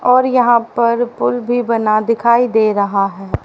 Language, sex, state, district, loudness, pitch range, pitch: Hindi, female, Haryana, Rohtak, -14 LUFS, 215-245 Hz, 235 Hz